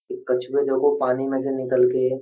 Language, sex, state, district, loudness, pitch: Hindi, male, Uttar Pradesh, Jyotiba Phule Nagar, -22 LUFS, 135 Hz